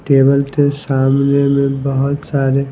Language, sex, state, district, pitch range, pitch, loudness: Hindi, male, Himachal Pradesh, Shimla, 135-140 Hz, 140 Hz, -14 LUFS